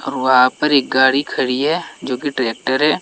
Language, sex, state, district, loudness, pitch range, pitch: Hindi, male, Bihar, West Champaran, -16 LUFS, 125-140 Hz, 130 Hz